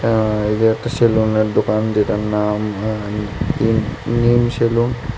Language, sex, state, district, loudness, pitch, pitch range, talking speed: Bengali, male, Tripura, West Tripura, -17 LUFS, 110 Hz, 105-120 Hz, 140 wpm